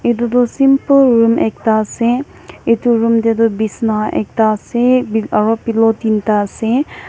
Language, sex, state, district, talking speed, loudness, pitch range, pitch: Nagamese, female, Nagaland, Kohima, 135 wpm, -14 LUFS, 220-240 Hz, 230 Hz